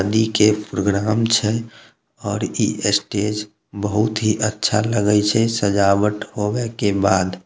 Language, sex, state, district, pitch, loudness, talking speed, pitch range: Maithili, male, Bihar, Samastipur, 105 Hz, -19 LUFS, 130 wpm, 100-110 Hz